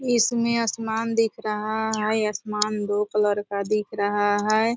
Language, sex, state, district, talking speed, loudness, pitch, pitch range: Hindi, female, Bihar, Purnia, 165 wpm, -24 LUFS, 215 Hz, 210-225 Hz